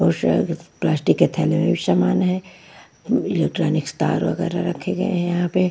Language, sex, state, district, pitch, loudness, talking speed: Hindi, female, Punjab, Pathankot, 175 Hz, -20 LUFS, 170 wpm